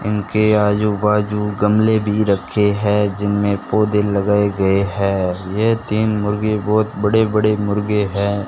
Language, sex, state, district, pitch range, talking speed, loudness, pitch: Hindi, male, Rajasthan, Bikaner, 100-105 Hz, 140 wpm, -17 LUFS, 105 Hz